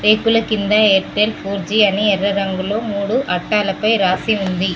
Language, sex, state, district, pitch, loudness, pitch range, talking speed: Telugu, female, Telangana, Mahabubabad, 205 Hz, -16 LUFS, 195-215 Hz, 150 wpm